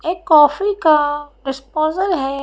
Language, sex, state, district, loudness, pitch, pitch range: Hindi, female, Madhya Pradesh, Bhopal, -16 LUFS, 310 Hz, 290-355 Hz